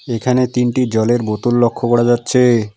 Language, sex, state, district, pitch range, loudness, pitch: Bengali, male, West Bengal, Alipurduar, 115-125 Hz, -15 LUFS, 120 Hz